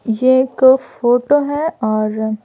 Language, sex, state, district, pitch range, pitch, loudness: Hindi, female, Bihar, Patna, 220-270 Hz, 250 Hz, -15 LUFS